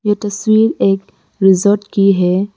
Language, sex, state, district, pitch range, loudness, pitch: Hindi, male, Arunachal Pradesh, Lower Dibang Valley, 195-210 Hz, -13 LUFS, 200 Hz